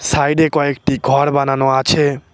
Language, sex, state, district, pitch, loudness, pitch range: Bengali, male, West Bengal, Cooch Behar, 140 Hz, -15 LUFS, 135-145 Hz